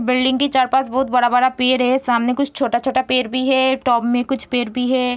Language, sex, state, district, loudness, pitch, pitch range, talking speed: Hindi, female, Bihar, Begusarai, -17 LUFS, 255 Hz, 245-260 Hz, 230 wpm